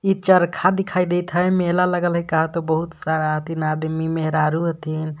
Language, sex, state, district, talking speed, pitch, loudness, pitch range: Magahi, male, Jharkhand, Palamu, 185 wpm, 165 Hz, -20 LUFS, 160-180 Hz